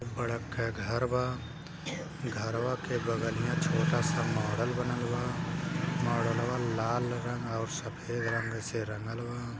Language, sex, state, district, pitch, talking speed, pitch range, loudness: Bhojpuri, male, Uttar Pradesh, Gorakhpur, 120 Hz, 135 wpm, 115-150 Hz, -33 LUFS